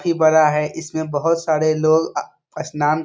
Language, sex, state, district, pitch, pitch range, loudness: Hindi, male, Bihar, Jamui, 155 Hz, 155-160 Hz, -18 LUFS